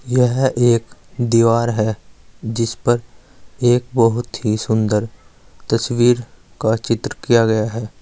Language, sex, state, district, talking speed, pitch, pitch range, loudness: Hindi, male, Uttar Pradesh, Saharanpur, 110 wpm, 115 Hz, 110-120 Hz, -18 LUFS